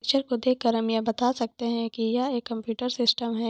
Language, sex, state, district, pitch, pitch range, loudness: Hindi, female, Jharkhand, Sahebganj, 235 Hz, 230-245 Hz, -26 LUFS